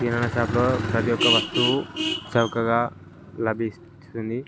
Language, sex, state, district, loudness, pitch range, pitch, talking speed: Telugu, male, Andhra Pradesh, Guntur, -23 LUFS, 115-120 Hz, 115 Hz, 120 wpm